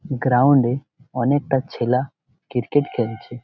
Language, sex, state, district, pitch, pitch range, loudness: Bengali, male, West Bengal, Jalpaiguri, 130 Hz, 125-140 Hz, -20 LUFS